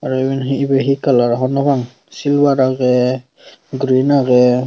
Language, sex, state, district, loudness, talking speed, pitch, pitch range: Chakma, female, Tripura, Unakoti, -15 LUFS, 155 wpm, 130 Hz, 125-140 Hz